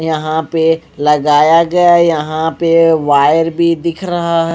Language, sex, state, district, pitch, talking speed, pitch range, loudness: Hindi, male, Odisha, Malkangiri, 165 Hz, 145 wpm, 155-170 Hz, -12 LUFS